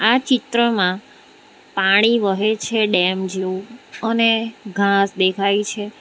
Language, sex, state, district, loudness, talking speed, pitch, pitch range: Gujarati, female, Gujarat, Valsad, -18 LUFS, 110 wpm, 205 Hz, 195-225 Hz